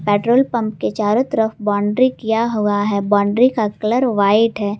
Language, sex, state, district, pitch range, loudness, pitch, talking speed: Hindi, female, Jharkhand, Garhwa, 205-235 Hz, -17 LUFS, 215 Hz, 175 wpm